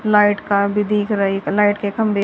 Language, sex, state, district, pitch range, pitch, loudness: Hindi, female, Haryana, Jhajjar, 200-210 Hz, 205 Hz, -17 LUFS